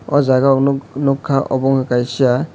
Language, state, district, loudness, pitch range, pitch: Kokborok, Tripura, West Tripura, -16 LUFS, 130-140 Hz, 135 Hz